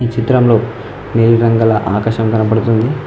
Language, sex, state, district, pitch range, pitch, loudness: Telugu, male, Telangana, Mahabubabad, 110-115 Hz, 115 Hz, -13 LUFS